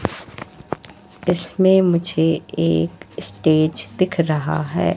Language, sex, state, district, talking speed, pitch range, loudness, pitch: Hindi, female, Madhya Pradesh, Katni, 85 wpm, 155-175 Hz, -19 LUFS, 160 Hz